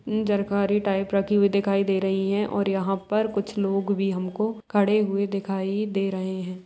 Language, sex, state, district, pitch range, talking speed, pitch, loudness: Hindi, female, Bihar, Araria, 195-205 Hz, 200 wpm, 200 Hz, -24 LUFS